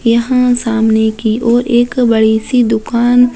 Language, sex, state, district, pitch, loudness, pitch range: Hindi, female, Bihar, Muzaffarpur, 235 Hz, -12 LUFS, 225-245 Hz